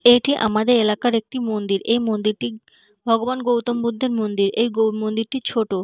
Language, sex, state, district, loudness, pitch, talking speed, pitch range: Bengali, female, West Bengal, North 24 Parganas, -20 LUFS, 225 Hz, 145 wpm, 215-240 Hz